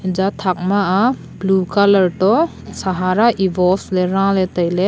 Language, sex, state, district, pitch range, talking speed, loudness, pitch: Wancho, female, Arunachal Pradesh, Longding, 185-200 Hz, 145 wpm, -16 LUFS, 190 Hz